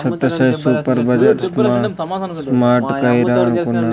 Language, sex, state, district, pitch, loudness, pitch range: Telugu, male, Andhra Pradesh, Sri Satya Sai, 125 Hz, -15 LUFS, 120-155 Hz